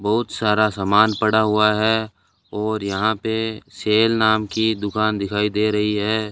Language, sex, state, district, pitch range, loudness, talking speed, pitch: Hindi, male, Rajasthan, Bikaner, 105-110 Hz, -19 LUFS, 160 wpm, 110 Hz